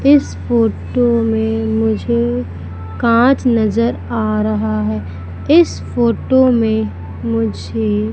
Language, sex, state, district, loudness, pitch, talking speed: Hindi, female, Madhya Pradesh, Umaria, -15 LUFS, 110 Hz, 95 wpm